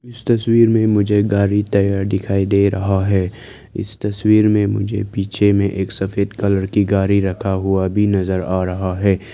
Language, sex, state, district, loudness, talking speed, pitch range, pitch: Hindi, male, Arunachal Pradesh, Lower Dibang Valley, -17 LUFS, 180 wpm, 95-105 Hz, 100 Hz